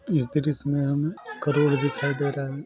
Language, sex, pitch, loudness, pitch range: Maithili, female, 145 Hz, -25 LUFS, 140-150 Hz